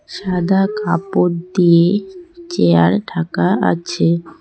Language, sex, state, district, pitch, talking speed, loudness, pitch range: Bengali, female, West Bengal, Cooch Behar, 175 Hz, 80 wpm, -16 LUFS, 165-195 Hz